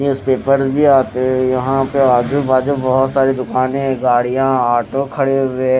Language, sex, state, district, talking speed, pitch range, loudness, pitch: Hindi, male, Odisha, Malkangiri, 145 wpm, 130-135 Hz, -15 LUFS, 130 Hz